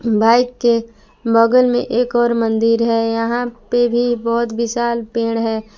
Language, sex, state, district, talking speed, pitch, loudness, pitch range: Hindi, female, Jharkhand, Palamu, 155 wpm, 235 Hz, -16 LUFS, 230-240 Hz